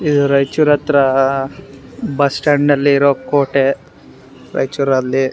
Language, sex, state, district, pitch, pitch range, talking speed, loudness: Kannada, male, Karnataka, Raichur, 140 Hz, 135-145 Hz, 90 wpm, -14 LUFS